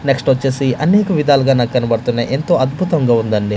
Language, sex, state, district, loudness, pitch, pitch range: Telugu, male, Andhra Pradesh, Manyam, -15 LUFS, 135 Hz, 120-145 Hz